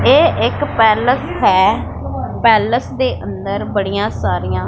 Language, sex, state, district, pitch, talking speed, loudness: Punjabi, female, Punjab, Pathankot, 215 Hz, 115 wpm, -15 LUFS